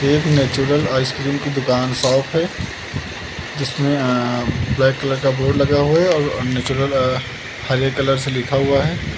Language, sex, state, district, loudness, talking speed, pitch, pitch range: Hindi, male, Uttar Pradesh, Lucknow, -18 LUFS, 165 wpm, 135 Hz, 130-140 Hz